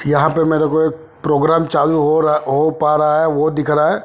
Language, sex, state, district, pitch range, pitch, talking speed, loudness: Hindi, male, Punjab, Fazilka, 150-160 Hz, 155 Hz, 205 wpm, -15 LUFS